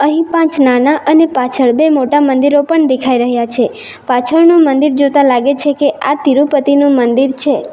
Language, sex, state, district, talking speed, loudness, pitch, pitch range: Gujarati, female, Gujarat, Valsad, 170 wpm, -11 LUFS, 285 Hz, 260-295 Hz